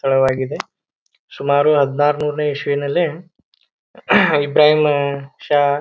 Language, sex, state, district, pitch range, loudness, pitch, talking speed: Kannada, male, Karnataka, Bijapur, 140-150 Hz, -17 LUFS, 145 Hz, 70 wpm